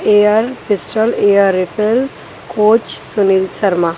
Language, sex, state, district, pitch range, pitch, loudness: Hindi, female, Haryana, Charkhi Dadri, 195-220 Hz, 210 Hz, -14 LUFS